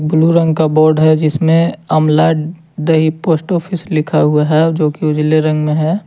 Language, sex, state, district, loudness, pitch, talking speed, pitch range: Hindi, male, Jharkhand, Ranchi, -13 LUFS, 155 Hz, 190 wpm, 155-165 Hz